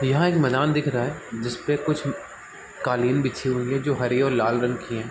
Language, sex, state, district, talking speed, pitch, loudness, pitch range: Hindi, male, Bihar, Sitamarhi, 225 wpm, 135 Hz, -24 LUFS, 125-145 Hz